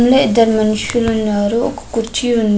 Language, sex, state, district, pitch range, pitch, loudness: Telugu, female, Andhra Pradesh, Krishna, 215-240 Hz, 225 Hz, -15 LUFS